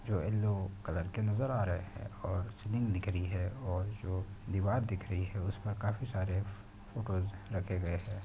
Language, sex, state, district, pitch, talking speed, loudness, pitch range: Hindi, male, Chhattisgarh, Bastar, 100 Hz, 190 wpm, -37 LUFS, 95-105 Hz